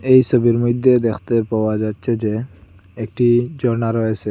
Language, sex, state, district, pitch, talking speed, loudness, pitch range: Bengali, male, Assam, Hailakandi, 115 Hz, 140 wpm, -17 LUFS, 110-125 Hz